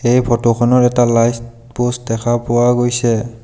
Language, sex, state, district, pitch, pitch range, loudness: Assamese, male, Assam, Sonitpur, 120 Hz, 115-120 Hz, -14 LUFS